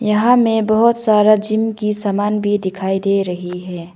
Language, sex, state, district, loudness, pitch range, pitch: Hindi, female, Arunachal Pradesh, Longding, -16 LUFS, 190-215 Hz, 210 Hz